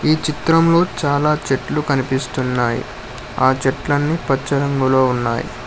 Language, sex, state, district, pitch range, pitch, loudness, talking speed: Telugu, male, Telangana, Hyderabad, 130-150 Hz, 135 Hz, -18 LUFS, 95 wpm